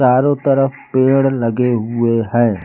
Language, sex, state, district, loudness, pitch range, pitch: Hindi, male, Uttar Pradesh, Lucknow, -15 LUFS, 115-135 Hz, 125 Hz